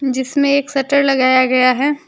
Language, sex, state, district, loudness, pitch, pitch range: Hindi, female, Jharkhand, Deoghar, -14 LUFS, 275 Hz, 255-280 Hz